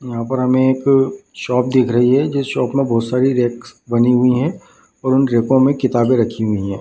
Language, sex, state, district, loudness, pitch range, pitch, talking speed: Hindi, male, Bihar, Madhepura, -16 LUFS, 120-135 Hz, 125 Hz, 230 wpm